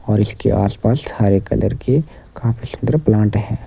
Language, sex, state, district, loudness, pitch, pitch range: Hindi, male, Himachal Pradesh, Shimla, -18 LUFS, 110 Hz, 105-125 Hz